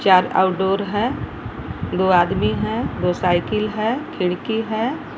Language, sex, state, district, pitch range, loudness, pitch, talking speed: Hindi, female, Jharkhand, Palamu, 180-220 Hz, -20 LUFS, 190 Hz, 125 wpm